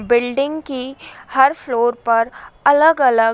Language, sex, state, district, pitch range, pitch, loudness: Hindi, female, Uttar Pradesh, Budaun, 235-280 Hz, 255 Hz, -17 LUFS